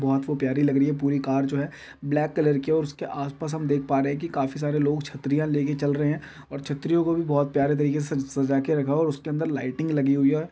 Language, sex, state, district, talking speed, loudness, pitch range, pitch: Hindi, male, Chhattisgarh, Balrampur, 275 wpm, -25 LUFS, 140-150 Hz, 145 Hz